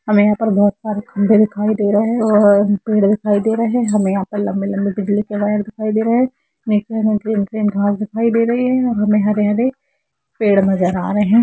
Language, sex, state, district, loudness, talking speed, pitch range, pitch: Hindi, female, Jharkhand, Jamtara, -16 LUFS, 235 wpm, 205-220 Hz, 210 Hz